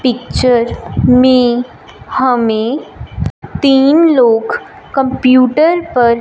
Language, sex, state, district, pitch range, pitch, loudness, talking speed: Hindi, female, Punjab, Fazilka, 245-295 Hz, 255 Hz, -12 LUFS, 70 wpm